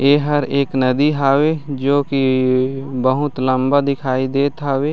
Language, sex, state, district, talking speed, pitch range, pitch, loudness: Chhattisgarhi, male, Chhattisgarh, Raigarh, 135 wpm, 130-145 Hz, 135 Hz, -17 LUFS